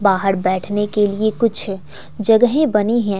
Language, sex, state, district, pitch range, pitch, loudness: Hindi, female, Bihar, West Champaran, 195-225 Hz, 210 Hz, -17 LUFS